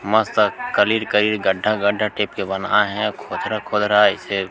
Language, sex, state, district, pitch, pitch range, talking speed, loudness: Chhattisgarhi, male, Chhattisgarh, Sukma, 105 Hz, 100-105 Hz, 175 wpm, -19 LUFS